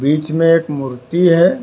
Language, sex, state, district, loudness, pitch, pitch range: Hindi, male, Karnataka, Bangalore, -14 LUFS, 165 Hz, 145-170 Hz